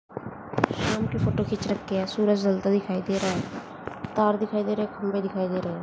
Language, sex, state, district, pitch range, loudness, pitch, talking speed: Hindi, female, Haryana, Jhajjar, 190-210 Hz, -26 LUFS, 200 Hz, 215 wpm